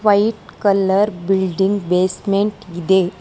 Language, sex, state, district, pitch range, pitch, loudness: Kannada, female, Karnataka, Bangalore, 185-205 Hz, 195 Hz, -17 LUFS